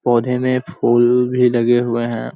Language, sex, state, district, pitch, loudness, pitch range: Hindi, female, Bihar, Sitamarhi, 120 Hz, -16 LUFS, 120-125 Hz